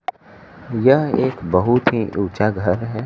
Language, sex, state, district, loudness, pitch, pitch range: Hindi, male, Bihar, Kaimur, -18 LUFS, 110 Hz, 100-120 Hz